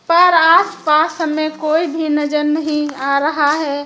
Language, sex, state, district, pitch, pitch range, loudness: Hindi, female, Chhattisgarh, Raipur, 310 Hz, 300-325 Hz, -15 LUFS